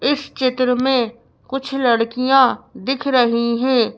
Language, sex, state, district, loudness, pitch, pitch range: Hindi, female, Madhya Pradesh, Bhopal, -18 LUFS, 255 Hz, 240-270 Hz